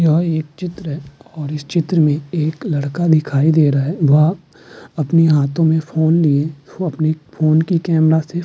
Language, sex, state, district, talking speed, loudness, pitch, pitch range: Hindi, male, Uttarakhand, Tehri Garhwal, 185 wpm, -16 LUFS, 155 Hz, 150-165 Hz